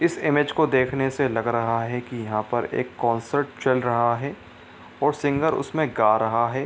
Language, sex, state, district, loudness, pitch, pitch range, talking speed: Hindi, male, Bihar, Supaul, -23 LUFS, 130 Hz, 115-145 Hz, 200 wpm